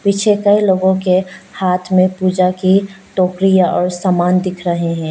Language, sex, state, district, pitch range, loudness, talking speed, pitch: Hindi, female, Arunachal Pradesh, Lower Dibang Valley, 180-195 Hz, -14 LUFS, 165 wpm, 185 Hz